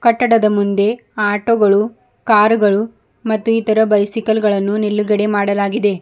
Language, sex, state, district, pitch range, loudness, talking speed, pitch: Kannada, female, Karnataka, Bidar, 205-225 Hz, -15 LUFS, 120 wpm, 210 Hz